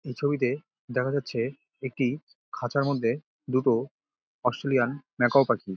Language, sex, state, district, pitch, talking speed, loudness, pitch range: Bengali, male, West Bengal, Dakshin Dinajpur, 130 Hz, 115 wpm, -28 LUFS, 125-140 Hz